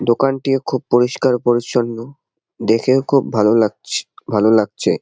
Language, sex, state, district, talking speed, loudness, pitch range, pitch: Bengali, male, West Bengal, Jalpaiguri, 120 wpm, -17 LUFS, 110-130 Hz, 120 Hz